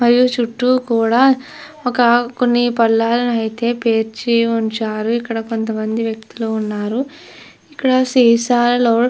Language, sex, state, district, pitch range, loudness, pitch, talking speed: Telugu, female, Andhra Pradesh, Chittoor, 225-245 Hz, -16 LUFS, 235 Hz, 110 wpm